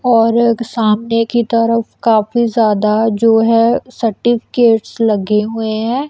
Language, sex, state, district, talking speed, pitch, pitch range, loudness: Hindi, female, Punjab, Kapurthala, 130 wpm, 230 Hz, 220-235 Hz, -14 LUFS